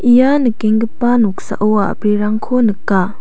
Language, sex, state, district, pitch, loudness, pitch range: Garo, female, Meghalaya, South Garo Hills, 215 Hz, -14 LUFS, 210-245 Hz